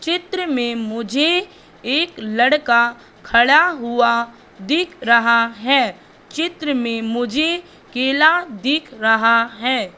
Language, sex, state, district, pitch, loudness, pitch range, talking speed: Hindi, female, Madhya Pradesh, Katni, 245 Hz, -17 LUFS, 235-310 Hz, 100 wpm